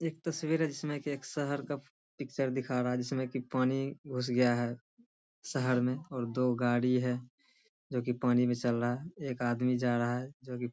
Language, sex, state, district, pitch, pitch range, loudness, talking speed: Hindi, male, Bihar, Bhagalpur, 125 Hz, 125-140 Hz, -33 LUFS, 220 wpm